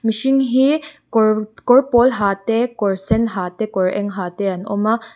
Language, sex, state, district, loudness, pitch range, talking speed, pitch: Mizo, female, Mizoram, Aizawl, -18 LUFS, 200-245 Hz, 210 wpm, 220 Hz